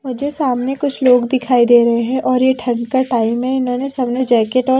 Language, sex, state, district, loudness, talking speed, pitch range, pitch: Hindi, female, Haryana, Rohtak, -15 LUFS, 225 wpm, 245-260 Hz, 255 Hz